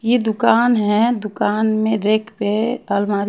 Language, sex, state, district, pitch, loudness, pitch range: Hindi, female, Haryana, Charkhi Dadri, 220 Hz, -18 LUFS, 210-230 Hz